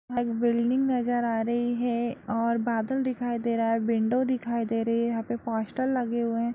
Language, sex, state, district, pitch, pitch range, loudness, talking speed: Hindi, female, Bihar, Lakhisarai, 235 Hz, 230-245 Hz, -27 LUFS, 210 wpm